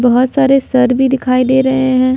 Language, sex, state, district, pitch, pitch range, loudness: Hindi, female, Jharkhand, Ranchi, 260 Hz, 255-265 Hz, -12 LUFS